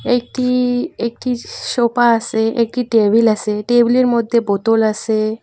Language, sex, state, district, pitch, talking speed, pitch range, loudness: Bengali, female, West Bengal, Cooch Behar, 235 Hz, 130 wpm, 220-245 Hz, -16 LUFS